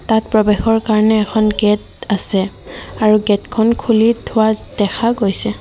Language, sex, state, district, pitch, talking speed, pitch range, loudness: Assamese, female, Assam, Kamrup Metropolitan, 215 Hz, 130 wpm, 205-225 Hz, -15 LUFS